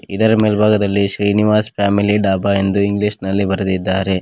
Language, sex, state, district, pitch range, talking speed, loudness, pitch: Kannada, male, Karnataka, Koppal, 95-105 Hz, 130 wpm, -15 LUFS, 100 Hz